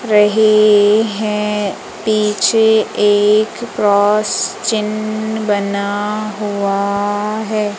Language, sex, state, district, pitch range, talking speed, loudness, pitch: Hindi, female, Madhya Pradesh, Umaria, 205-215 Hz, 70 wpm, -15 LUFS, 210 Hz